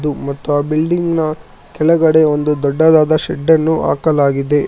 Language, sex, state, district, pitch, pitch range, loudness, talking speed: Kannada, male, Karnataka, Bangalore, 155 Hz, 145-160 Hz, -14 LUFS, 140 wpm